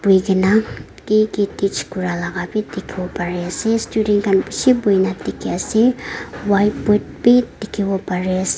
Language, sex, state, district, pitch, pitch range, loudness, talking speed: Nagamese, female, Nagaland, Dimapur, 200 Hz, 185-215 Hz, -18 LUFS, 120 wpm